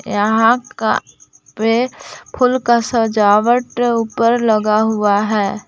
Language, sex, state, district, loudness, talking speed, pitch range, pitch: Hindi, female, Jharkhand, Palamu, -15 LUFS, 105 wpm, 210-240 Hz, 225 Hz